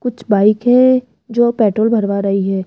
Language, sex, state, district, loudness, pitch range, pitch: Hindi, female, Rajasthan, Jaipur, -14 LUFS, 200-245 Hz, 225 Hz